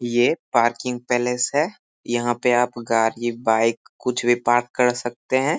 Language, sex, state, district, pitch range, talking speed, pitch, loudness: Hindi, male, Bihar, Saharsa, 120-125 Hz, 160 wpm, 120 Hz, -21 LUFS